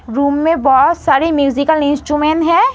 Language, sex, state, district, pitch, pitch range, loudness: Hindi, female, Uttar Pradesh, Etah, 295 Hz, 280-320 Hz, -13 LUFS